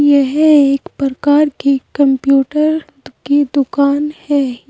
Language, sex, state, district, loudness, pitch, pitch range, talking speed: Hindi, female, Uttar Pradesh, Saharanpur, -13 LUFS, 285 Hz, 275-300 Hz, 115 wpm